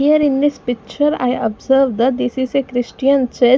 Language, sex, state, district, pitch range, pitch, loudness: English, female, Punjab, Fazilka, 245-275 Hz, 260 Hz, -17 LUFS